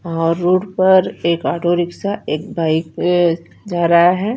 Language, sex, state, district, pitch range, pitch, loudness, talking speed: Hindi, female, Punjab, Fazilka, 170-185 Hz, 175 Hz, -16 LUFS, 165 wpm